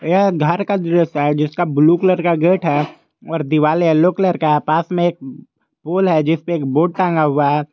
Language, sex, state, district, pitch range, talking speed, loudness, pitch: Hindi, male, Jharkhand, Garhwa, 150-175 Hz, 215 wpm, -16 LUFS, 165 Hz